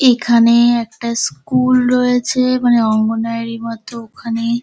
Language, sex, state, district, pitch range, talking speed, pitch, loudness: Bengali, male, West Bengal, Dakshin Dinajpur, 230-250 Hz, 105 wpm, 235 Hz, -15 LUFS